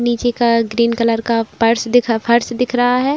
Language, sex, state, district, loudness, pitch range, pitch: Hindi, female, Bihar, Saran, -15 LUFS, 230-245 Hz, 235 Hz